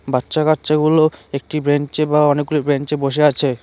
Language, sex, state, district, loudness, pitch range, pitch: Bengali, male, West Bengal, Cooch Behar, -16 LUFS, 140-155 Hz, 150 Hz